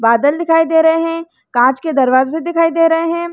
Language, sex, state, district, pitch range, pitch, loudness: Hindi, female, Chhattisgarh, Rajnandgaon, 265-330 Hz, 325 Hz, -13 LUFS